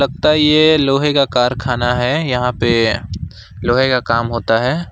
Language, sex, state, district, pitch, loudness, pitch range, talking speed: Hindi, male, West Bengal, Alipurduar, 125 Hz, -15 LUFS, 115-140 Hz, 170 wpm